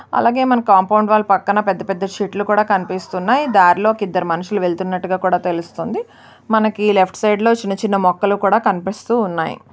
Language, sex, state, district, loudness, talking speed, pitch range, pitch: Telugu, female, Andhra Pradesh, Guntur, -16 LUFS, 140 wpm, 185-215 Hz, 200 Hz